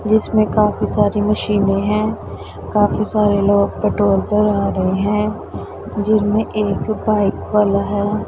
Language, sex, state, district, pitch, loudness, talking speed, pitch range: Hindi, female, Punjab, Pathankot, 210 Hz, -17 LUFS, 125 wpm, 200-215 Hz